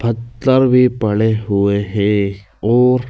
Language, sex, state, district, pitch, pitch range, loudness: Hindi, male, Madhya Pradesh, Bhopal, 110 Hz, 100-125 Hz, -15 LUFS